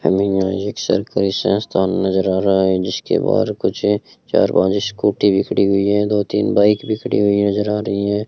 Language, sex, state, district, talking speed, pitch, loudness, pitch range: Hindi, male, Rajasthan, Bikaner, 210 wpm, 100 Hz, -17 LUFS, 95-105 Hz